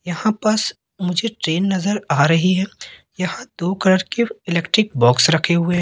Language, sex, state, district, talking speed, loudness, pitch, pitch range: Hindi, male, Madhya Pradesh, Katni, 175 wpm, -18 LUFS, 185 Hz, 170-210 Hz